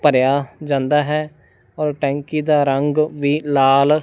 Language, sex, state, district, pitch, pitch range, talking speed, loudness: Punjabi, male, Punjab, Fazilka, 145 Hz, 140-150 Hz, 120 wpm, -18 LUFS